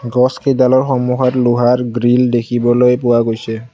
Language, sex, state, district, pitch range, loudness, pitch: Assamese, male, Assam, Kamrup Metropolitan, 120-125 Hz, -13 LUFS, 125 Hz